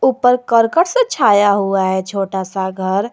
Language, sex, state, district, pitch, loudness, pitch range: Hindi, female, Jharkhand, Garhwa, 205 Hz, -15 LUFS, 190-245 Hz